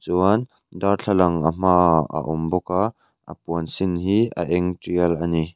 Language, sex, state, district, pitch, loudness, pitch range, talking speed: Mizo, male, Mizoram, Aizawl, 90 Hz, -21 LUFS, 85-95 Hz, 195 wpm